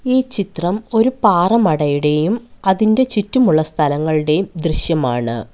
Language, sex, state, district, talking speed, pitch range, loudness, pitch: Malayalam, female, Kerala, Kollam, 85 wpm, 155-225 Hz, -16 LUFS, 180 Hz